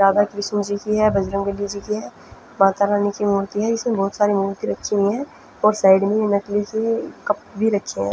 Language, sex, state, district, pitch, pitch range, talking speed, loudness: Hindi, female, Punjab, Fazilka, 205 Hz, 200-215 Hz, 230 wpm, -20 LUFS